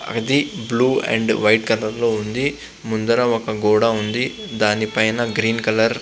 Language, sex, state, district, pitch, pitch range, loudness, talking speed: Telugu, male, Andhra Pradesh, Visakhapatnam, 115 Hz, 110-120 Hz, -19 LUFS, 160 wpm